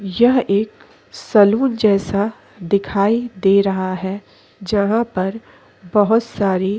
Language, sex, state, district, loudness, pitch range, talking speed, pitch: Hindi, female, Chhattisgarh, Korba, -17 LUFS, 195-225 Hz, 115 wpm, 200 Hz